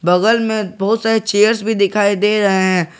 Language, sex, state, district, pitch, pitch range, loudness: Hindi, male, Jharkhand, Garhwa, 205 Hz, 190-220 Hz, -15 LUFS